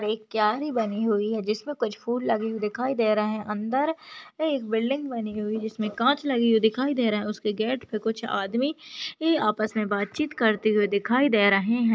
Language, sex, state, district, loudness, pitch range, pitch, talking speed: Hindi, female, Maharashtra, Nagpur, -25 LUFS, 215-265 Hz, 225 Hz, 215 wpm